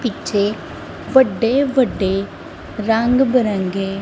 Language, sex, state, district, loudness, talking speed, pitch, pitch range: Punjabi, female, Punjab, Kapurthala, -17 LUFS, 75 wpm, 225 Hz, 195-255 Hz